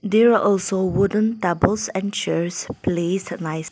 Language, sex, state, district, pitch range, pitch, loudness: English, female, Nagaland, Dimapur, 175-205 Hz, 190 Hz, -21 LUFS